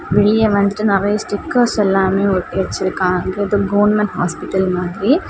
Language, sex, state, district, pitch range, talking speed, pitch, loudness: Tamil, female, Tamil Nadu, Kanyakumari, 190-210 Hz, 125 wpm, 200 Hz, -16 LUFS